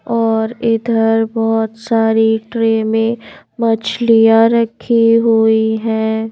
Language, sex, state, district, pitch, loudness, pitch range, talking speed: Hindi, female, Madhya Pradesh, Bhopal, 225 Hz, -14 LUFS, 225-230 Hz, 95 wpm